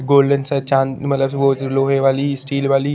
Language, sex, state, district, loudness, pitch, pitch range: Hindi, male, Chandigarh, Chandigarh, -17 LUFS, 135 Hz, 135-140 Hz